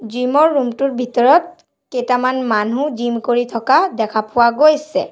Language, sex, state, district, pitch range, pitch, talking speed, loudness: Assamese, female, Assam, Sonitpur, 235-280 Hz, 250 Hz, 150 wpm, -16 LUFS